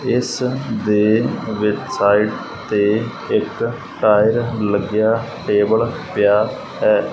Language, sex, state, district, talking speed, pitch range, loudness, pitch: Punjabi, male, Punjab, Fazilka, 95 wpm, 105-115 Hz, -18 LUFS, 110 Hz